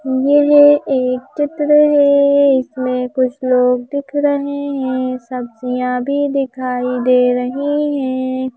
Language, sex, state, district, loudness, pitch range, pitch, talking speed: Hindi, female, Madhya Pradesh, Bhopal, -15 LUFS, 255-285 Hz, 260 Hz, 110 wpm